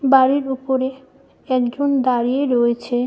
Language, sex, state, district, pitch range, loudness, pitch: Bengali, female, West Bengal, Malda, 245-270 Hz, -19 LUFS, 260 Hz